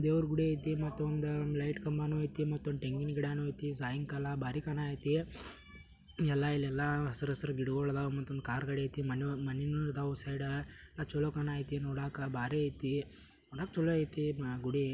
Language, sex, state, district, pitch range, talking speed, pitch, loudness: Kannada, male, Karnataka, Belgaum, 140-150 Hz, 150 wpm, 145 Hz, -36 LUFS